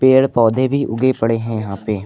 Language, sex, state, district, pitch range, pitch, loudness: Hindi, male, Uttar Pradesh, Lucknow, 110-130 Hz, 115 Hz, -17 LUFS